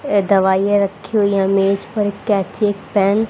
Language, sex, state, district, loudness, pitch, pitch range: Hindi, female, Haryana, Jhajjar, -17 LUFS, 200 Hz, 195-205 Hz